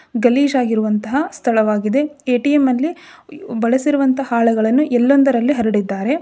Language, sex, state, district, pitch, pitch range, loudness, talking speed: Kannada, female, Karnataka, Dharwad, 255 Hz, 230-285 Hz, -16 LUFS, 75 wpm